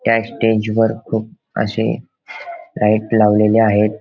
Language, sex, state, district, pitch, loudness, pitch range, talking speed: Marathi, male, Maharashtra, Pune, 110 Hz, -16 LUFS, 105-115 Hz, 120 wpm